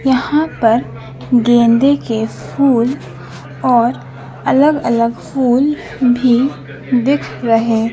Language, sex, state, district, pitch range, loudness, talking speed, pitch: Hindi, female, Madhya Pradesh, Dhar, 230-270 Hz, -14 LUFS, 90 wpm, 245 Hz